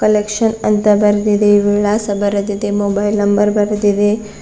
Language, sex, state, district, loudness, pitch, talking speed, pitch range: Kannada, female, Karnataka, Bidar, -14 LUFS, 205 Hz, 110 wpm, 205-210 Hz